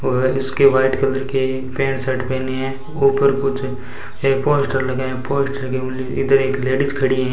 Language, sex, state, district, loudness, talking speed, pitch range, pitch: Hindi, male, Rajasthan, Bikaner, -19 LUFS, 165 wpm, 130-135 Hz, 135 Hz